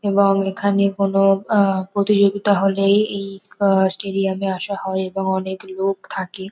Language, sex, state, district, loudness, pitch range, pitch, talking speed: Bengali, female, West Bengal, North 24 Parganas, -19 LUFS, 190-200 Hz, 195 Hz, 155 wpm